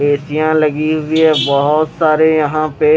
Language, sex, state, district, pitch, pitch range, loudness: Hindi, male, Haryana, Rohtak, 155 Hz, 150-155 Hz, -13 LUFS